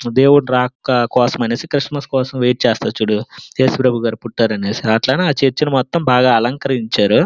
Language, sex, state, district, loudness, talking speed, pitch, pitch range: Telugu, male, Andhra Pradesh, Srikakulam, -16 LUFS, 165 wpm, 125 Hz, 115-135 Hz